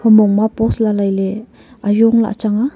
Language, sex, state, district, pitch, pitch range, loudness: Wancho, female, Arunachal Pradesh, Longding, 220 Hz, 205-225 Hz, -15 LUFS